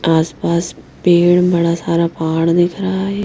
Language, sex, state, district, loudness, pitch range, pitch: Hindi, female, Haryana, Jhajjar, -15 LUFS, 170-180 Hz, 170 Hz